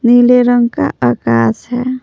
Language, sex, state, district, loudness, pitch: Hindi, female, Jharkhand, Palamu, -12 LUFS, 240 Hz